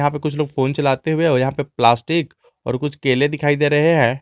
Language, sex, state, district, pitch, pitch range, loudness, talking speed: Hindi, male, Jharkhand, Garhwa, 145 Hz, 135-150 Hz, -18 LUFS, 255 wpm